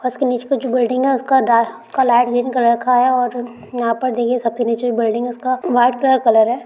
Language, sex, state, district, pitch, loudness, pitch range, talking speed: Hindi, female, Bihar, Bhagalpur, 245 Hz, -16 LUFS, 235-255 Hz, 270 wpm